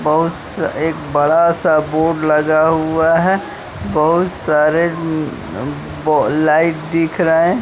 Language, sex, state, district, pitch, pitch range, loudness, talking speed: Hindi, male, Bihar, West Champaran, 160 Hz, 155-165 Hz, -15 LUFS, 110 wpm